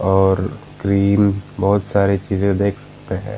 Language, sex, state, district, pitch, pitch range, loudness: Hindi, male, Bihar, Gaya, 100 Hz, 95-100 Hz, -18 LUFS